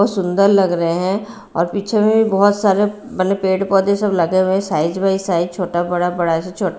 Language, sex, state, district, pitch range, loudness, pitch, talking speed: Hindi, female, Bihar, Patna, 180-200 Hz, -17 LUFS, 195 Hz, 230 wpm